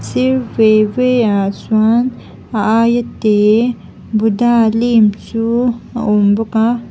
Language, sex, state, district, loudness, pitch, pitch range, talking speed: Mizo, female, Mizoram, Aizawl, -14 LUFS, 225 Hz, 215-240 Hz, 130 wpm